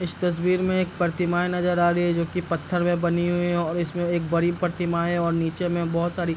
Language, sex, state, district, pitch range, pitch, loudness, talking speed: Hindi, male, Bihar, Bhagalpur, 170-175 Hz, 175 Hz, -24 LUFS, 265 wpm